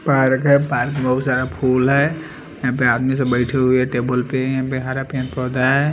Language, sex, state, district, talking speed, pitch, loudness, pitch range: Hindi, male, Delhi, New Delhi, 225 wpm, 130 Hz, -18 LUFS, 130-140 Hz